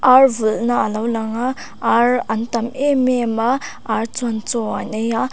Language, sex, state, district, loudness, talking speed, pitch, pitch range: Mizo, female, Mizoram, Aizawl, -18 LUFS, 200 wpm, 235 Hz, 220-250 Hz